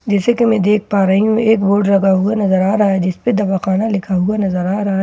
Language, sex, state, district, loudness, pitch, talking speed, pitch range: Hindi, female, Bihar, Katihar, -15 LUFS, 200 Hz, 285 wpm, 195-210 Hz